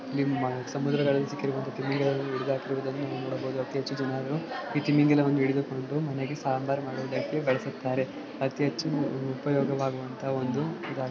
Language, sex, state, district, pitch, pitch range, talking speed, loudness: Kannada, male, Karnataka, Chamarajanagar, 135 Hz, 130-140 Hz, 120 wpm, -29 LUFS